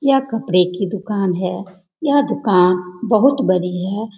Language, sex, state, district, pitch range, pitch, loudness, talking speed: Hindi, female, Bihar, Jamui, 180-225 Hz, 195 Hz, -17 LUFS, 145 wpm